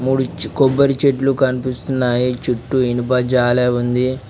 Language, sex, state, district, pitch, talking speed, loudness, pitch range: Telugu, male, Telangana, Mahabubabad, 130 Hz, 110 wpm, -17 LUFS, 125-135 Hz